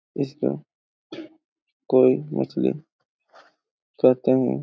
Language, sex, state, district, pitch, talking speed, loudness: Hindi, male, Chhattisgarh, Raigarh, 130 Hz, 65 wpm, -22 LUFS